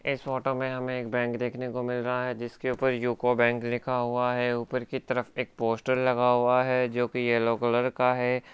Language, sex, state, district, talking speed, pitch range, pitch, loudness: Hindi, male, Rajasthan, Churu, 210 wpm, 120-125 Hz, 125 Hz, -27 LUFS